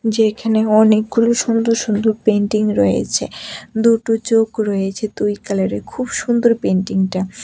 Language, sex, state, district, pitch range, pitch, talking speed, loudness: Bengali, female, Tripura, West Tripura, 205-230 Hz, 220 Hz, 120 wpm, -17 LUFS